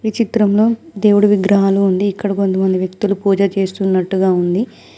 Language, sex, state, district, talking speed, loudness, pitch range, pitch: Telugu, female, Telangana, Mahabubabad, 120 wpm, -15 LUFS, 190-205 Hz, 195 Hz